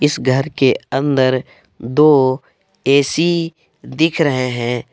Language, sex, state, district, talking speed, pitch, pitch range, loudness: Hindi, male, Jharkhand, Palamu, 110 wpm, 135 Hz, 130-155 Hz, -16 LUFS